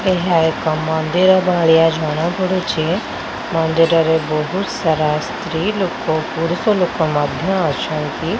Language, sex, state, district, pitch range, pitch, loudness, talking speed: Odia, female, Odisha, Khordha, 160-185 Hz, 165 Hz, -17 LUFS, 105 wpm